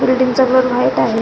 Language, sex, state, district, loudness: Marathi, female, Maharashtra, Solapur, -14 LUFS